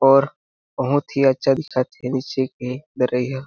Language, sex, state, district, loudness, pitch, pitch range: Chhattisgarhi, male, Chhattisgarh, Jashpur, -21 LUFS, 135 Hz, 130-140 Hz